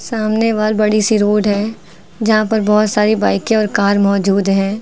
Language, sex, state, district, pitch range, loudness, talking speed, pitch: Hindi, female, Uttar Pradesh, Lucknow, 200-215 Hz, -14 LUFS, 185 wpm, 210 Hz